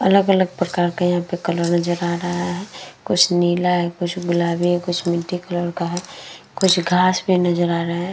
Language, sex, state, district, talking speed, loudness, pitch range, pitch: Hindi, female, Uttar Pradesh, Etah, 205 wpm, -19 LUFS, 175-180 Hz, 175 Hz